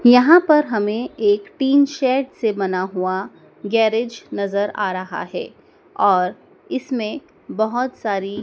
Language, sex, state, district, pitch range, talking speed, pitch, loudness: Hindi, male, Madhya Pradesh, Dhar, 200-270 Hz, 130 wpm, 230 Hz, -19 LUFS